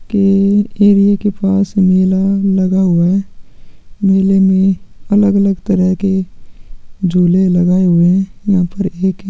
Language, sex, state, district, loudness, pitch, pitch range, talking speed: Hindi, male, Chhattisgarh, Sukma, -13 LUFS, 195 Hz, 185-195 Hz, 135 wpm